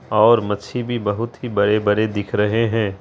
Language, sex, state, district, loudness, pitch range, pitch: Hindi, female, Bihar, Araria, -19 LUFS, 105-115 Hz, 105 Hz